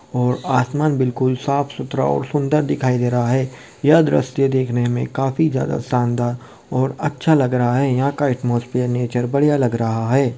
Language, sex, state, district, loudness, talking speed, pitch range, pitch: Hindi, male, Bihar, Kishanganj, -19 LUFS, 185 wpm, 120-140 Hz, 130 Hz